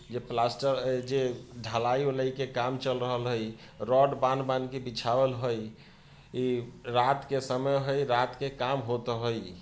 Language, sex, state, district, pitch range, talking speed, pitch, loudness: Bhojpuri, male, Bihar, Sitamarhi, 120-135 Hz, 155 wpm, 125 Hz, -30 LUFS